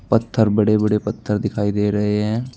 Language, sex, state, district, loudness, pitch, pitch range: Hindi, male, Uttar Pradesh, Saharanpur, -19 LUFS, 105 Hz, 105-110 Hz